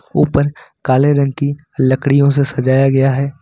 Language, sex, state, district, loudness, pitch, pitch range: Hindi, male, Jharkhand, Ranchi, -14 LUFS, 140 Hz, 135-145 Hz